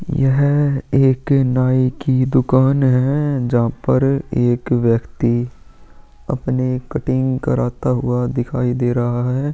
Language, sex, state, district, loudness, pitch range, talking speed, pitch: Hindi, male, Uttarakhand, Tehri Garhwal, -17 LUFS, 125-135 Hz, 115 wpm, 130 Hz